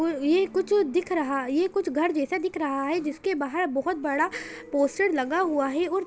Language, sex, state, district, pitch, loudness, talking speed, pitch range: Hindi, female, Bihar, Saran, 335 Hz, -26 LUFS, 190 wpm, 285-370 Hz